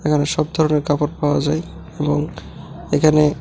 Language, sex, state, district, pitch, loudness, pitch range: Bengali, male, Tripura, West Tripura, 150 Hz, -19 LUFS, 145-155 Hz